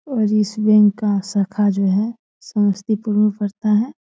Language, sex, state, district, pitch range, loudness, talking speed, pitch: Hindi, female, Bihar, Samastipur, 200-215 Hz, -18 LUFS, 165 wpm, 210 Hz